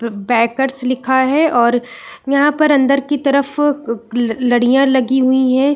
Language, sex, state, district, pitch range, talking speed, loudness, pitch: Hindi, female, Uttarakhand, Uttarkashi, 240-280 Hz, 145 wpm, -14 LUFS, 260 Hz